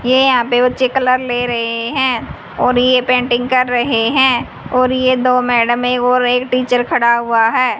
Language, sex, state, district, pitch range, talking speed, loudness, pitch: Hindi, female, Haryana, Charkhi Dadri, 240-255 Hz, 185 wpm, -14 LUFS, 250 Hz